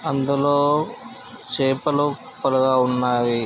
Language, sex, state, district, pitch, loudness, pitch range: Telugu, male, Andhra Pradesh, Krishna, 140 Hz, -20 LUFS, 130-150 Hz